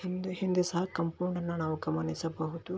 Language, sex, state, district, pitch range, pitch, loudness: Kannada, male, Karnataka, Belgaum, 160-180 Hz, 170 Hz, -33 LUFS